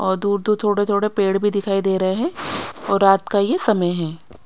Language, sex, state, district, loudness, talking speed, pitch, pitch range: Hindi, female, Odisha, Sambalpur, -19 LUFS, 230 wpm, 200 Hz, 190-205 Hz